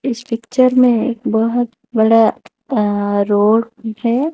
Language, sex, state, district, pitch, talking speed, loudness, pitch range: Hindi, female, Odisha, Khordha, 230 Hz, 125 wpm, -15 LUFS, 220-245 Hz